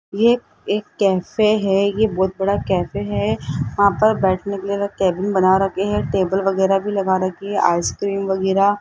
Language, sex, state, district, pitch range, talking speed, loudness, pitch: Hindi, female, Rajasthan, Jaipur, 190-200 Hz, 190 wpm, -19 LUFS, 195 Hz